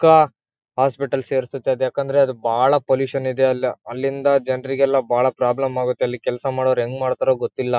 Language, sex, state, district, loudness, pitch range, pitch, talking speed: Kannada, male, Karnataka, Bellary, -20 LUFS, 125-135 Hz, 130 Hz, 170 wpm